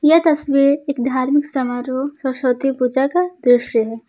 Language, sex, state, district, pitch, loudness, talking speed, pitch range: Hindi, female, Jharkhand, Ranchi, 270 Hz, -17 LUFS, 145 wpm, 250-290 Hz